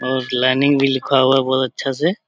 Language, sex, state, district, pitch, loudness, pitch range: Hindi, male, Bihar, Supaul, 130 Hz, -17 LUFS, 130-135 Hz